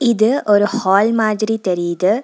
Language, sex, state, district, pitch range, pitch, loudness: Tamil, female, Tamil Nadu, Nilgiris, 195-225 Hz, 215 Hz, -16 LUFS